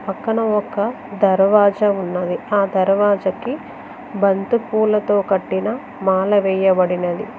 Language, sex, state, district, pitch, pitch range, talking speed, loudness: Telugu, female, Telangana, Mahabubabad, 200 Hz, 190-215 Hz, 80 wpm, -18 LUFS